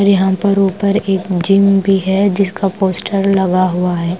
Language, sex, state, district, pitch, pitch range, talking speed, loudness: Hindi, female, Punjab, Pathankot, 195 Hz, 185-195 Hz, 185 wpm, -14 LUFS